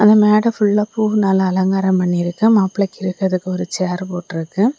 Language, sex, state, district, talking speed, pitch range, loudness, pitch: Tamil, female, Tamil Nadu, Kanyakumari, 150 wpm, 185-210 Hz, -17 LUFS, 190 Hz